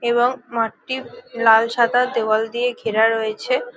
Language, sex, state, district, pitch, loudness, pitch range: Bengali, female, West Bengal, Jalpaiguri, 235 Hz, -19 LUFS, 225-245 Hz